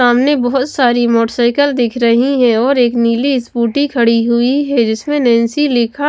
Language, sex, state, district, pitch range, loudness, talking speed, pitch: Hindi, female, Himachal Pradesh, Shimla, 235-275 Hz, -13 LUFS, 165 wpm, 245 Hz